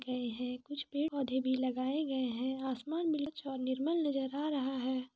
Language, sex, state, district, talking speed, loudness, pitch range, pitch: Hindi, female, Jharkhand, Sahebganj, 175 wpm, -36 LUFS, 255-290 Hz, 265 Hz